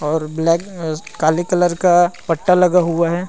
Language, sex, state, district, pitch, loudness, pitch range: Chhattisgarhi, male, Chhattisgarh, Rajnandgaon, 170 Hz, -16 LUFS, 160-180 Hz